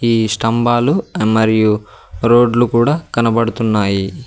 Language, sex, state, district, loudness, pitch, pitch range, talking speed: Telugu, male, Telangana, Mahabubabad, -14 LUFS, 115 Hz, 110-120 Hz, 85 wpm